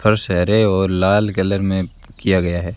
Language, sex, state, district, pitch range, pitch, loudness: Hindi, female, Rajasthan, Bikaner, 90-105 Hz, 95 Hz, -17 LUFS